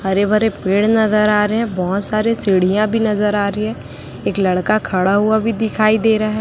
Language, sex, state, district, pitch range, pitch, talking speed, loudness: Hindi, male, Chhattisgarh, Raipur, 195-220 Hz, 210 Hz, 225 wpm, -16 LUFS